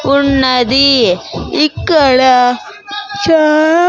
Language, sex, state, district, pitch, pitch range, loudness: Telugu, female, Andhra Pradesh, Sri Satya Sai, 300 Hz, 260-340 Hz, -10 LUFS